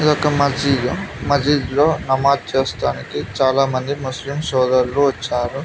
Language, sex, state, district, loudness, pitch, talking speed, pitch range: Telugu, male, Telangana, Mahabubabad, -18 LUFS, 135 Hz, 105 wpm, 130-140 Hz